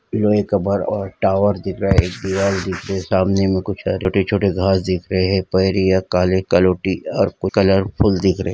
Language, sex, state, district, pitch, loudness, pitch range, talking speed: Hindi, male, Uttarakhand, Uttarkashi, 95 Hz, -18 LUFS, 95-100 Hz, 205 wpm